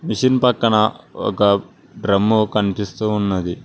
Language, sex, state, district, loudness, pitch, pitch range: Telugu, male, Telangana, Mahabubabad, -18 LUFS, 105 Hz, 100-110 Hz